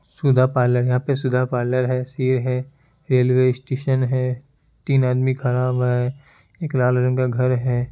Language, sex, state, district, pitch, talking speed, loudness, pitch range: Hindi, male, Bihar, Kishanganj, 130 Hz, 165 wpm, -20 LUFS, 125-130 Hz